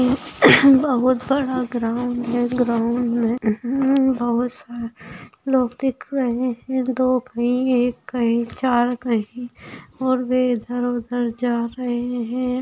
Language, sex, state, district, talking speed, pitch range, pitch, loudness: Hindi, female, Bihar, Saran, 115 wpm, 240-255 Hz, 245 Hz, -20 LUFS